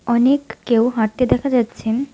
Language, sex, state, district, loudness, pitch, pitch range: Bengali, female, West Bengal, Alipurduar, -18 LUFS, 240 Hz, 225-260 Hz